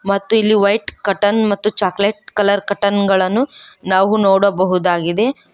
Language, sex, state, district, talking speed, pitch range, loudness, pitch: Kannada, female, Karnataka, Koppal, 120 wpm, 195-210 Hz, -15 LUFS, 200 Hz